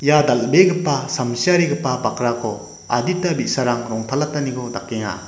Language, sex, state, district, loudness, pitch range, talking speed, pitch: Garo, male, Meghalaya, West Garo Hills, -19 LUFS, 120-150 Hz, 90 wpm, 130 Hz